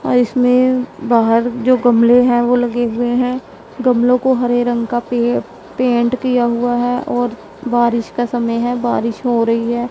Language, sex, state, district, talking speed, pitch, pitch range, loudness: Hindi, female, Punjab, Pathankot, 175 wpm, 245 Hz, 235-250 Hz, -15 LUFS